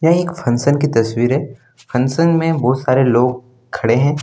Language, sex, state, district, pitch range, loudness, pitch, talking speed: Hindi, male, Jharkhand, Deoghar, 120-150 Hz, -16 LUFS, 130 Hz, 185 wpm